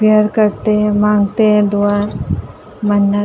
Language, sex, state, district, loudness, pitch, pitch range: Hindi, female, Uttar Pradesh, Jalaun, -14 LUFS, 210 Hz, 205-215 Hz